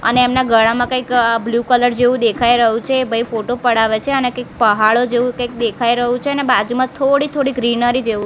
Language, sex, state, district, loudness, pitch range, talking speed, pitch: Gujarati, female, Gujarat, Gandhinagar, -15 LUFS, 230-250 Hz, 210 wpm, 245 Hz